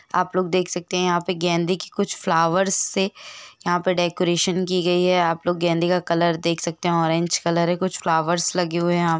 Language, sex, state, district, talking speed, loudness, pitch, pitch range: Hindi, female, Bihar, Gopalganj, 215 wpm, -21 LUFS, 175 Hz, 170-185 Hz